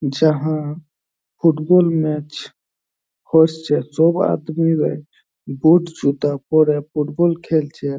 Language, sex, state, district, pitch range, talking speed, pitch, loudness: Bengali, male, West Bengal, Jhargram, 150-165 Hz, 85 wpm, 155 Hz, -18 LUFS